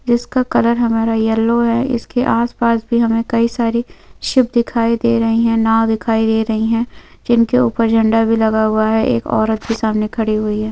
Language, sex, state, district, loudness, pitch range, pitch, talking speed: Hindi, female, Chhattisgarh, Bilaspur, -15 LUFS, 225-235 Hz, 230 Hz, 195 wpm